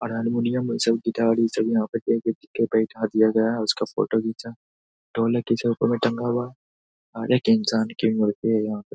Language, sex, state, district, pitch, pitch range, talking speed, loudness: Hindi, male, Bihar, Saharsa, 115 Hz, 110-115 Hz, 210 wpm, -23 LUFS